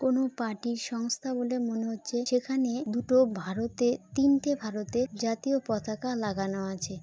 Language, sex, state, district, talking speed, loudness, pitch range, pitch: Bengali, female, West Bengal, Jalpaiguri, 130 wpm, -30 LUFS, 220-255 Hz, 240 Hz